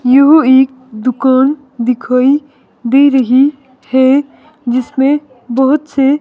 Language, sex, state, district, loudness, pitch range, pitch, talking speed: Hindi, female, Himachal Pradesh, Shimla, -11 LUFS, 255-280 Hz, 265 Hz, 95 wpm